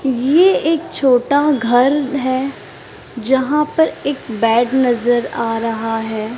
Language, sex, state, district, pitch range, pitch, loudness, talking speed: Hindi, female, Maharashtra, Mumbai Suburban, 235-280 Hz, 260 Hz, -16 LUFS, 120 wpm